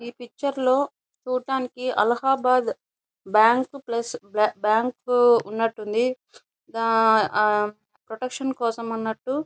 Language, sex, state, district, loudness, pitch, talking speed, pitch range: Telugu, female, Andhra Pradesh, Chittoor, -23 LUFS, 240 Hz, 95 wpm, 220-255 Hz